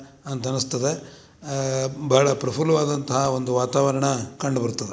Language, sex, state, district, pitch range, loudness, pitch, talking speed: Kannada, male, Karnataka, Dharwad, 130-140 Hz, -23 LUFS, 135 Hz, 95 wpm